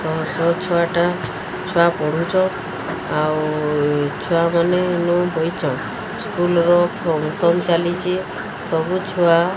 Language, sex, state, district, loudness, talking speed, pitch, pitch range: Odia, female, Odisha, Sambalpur, -19 LUFS, 100 wpm, 170 Hz, 160-180 Hz